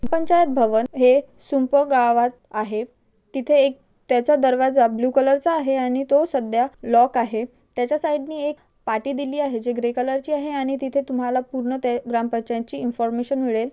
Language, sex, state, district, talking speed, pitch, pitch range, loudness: Marathi, male, Maharashtra, Chandrapur, 160 wpm, 255 Hz, 240-280 Hz, -21 LUFS